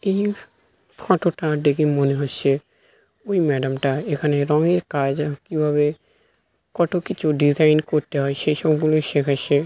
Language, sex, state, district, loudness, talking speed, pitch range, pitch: Bengali, male, West Bengal, North 24 Parganas, -20 LUFS, 135 wpm, 145-170 Hz, 150 Hz